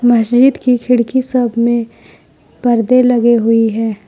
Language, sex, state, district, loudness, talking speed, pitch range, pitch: Hindi, female, Jharkhand, Ranchi, -12 LUFS, 130 wpm, 230-250 Hz, 240 Hz